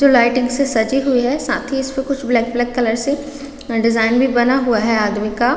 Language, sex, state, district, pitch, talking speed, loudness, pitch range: Hindi, female, Chhattisgarh, Raigarh, 250 Hz, 225 wpm, -17 LUFS, 230-275 Hz